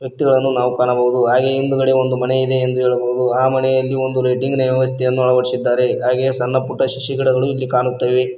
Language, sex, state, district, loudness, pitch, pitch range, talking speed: Kannada, male, Karnataka, Koppal, -16 LUFS, 130 Hz, 125-130 Hz, 170 wpm